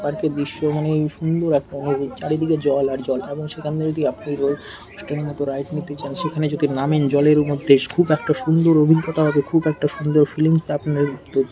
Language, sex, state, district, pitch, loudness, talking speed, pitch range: Bengali, male, West Bengal, Malda, 150 Hz, -20 LUFS, 200 wpm, 140-155 Hz